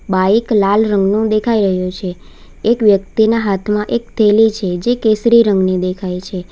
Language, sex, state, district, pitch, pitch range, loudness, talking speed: Gujarati, female, Gujarat, Valsad, 210 Hz, 185-220 Hz, -14 LUFS, 155 wpm